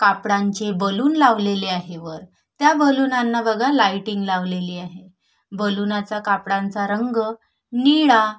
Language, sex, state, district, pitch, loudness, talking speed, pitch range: Marathi, female, Maharashtra, Solapur, 205 Hz, -19 LUFS, 105 wpm, 195-235 Hz